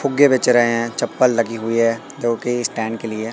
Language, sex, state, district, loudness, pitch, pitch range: Hindi, male, Madhya Pradesh, Katni, -18 LUFS, 115 Hz, 115-125 Hz